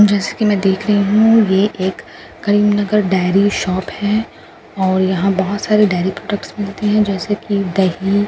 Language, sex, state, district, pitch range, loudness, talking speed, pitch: Hindi, female, Bihar, Katihar, 190-210 Hz, -15 LUFS, 180 wpm, 200 Hz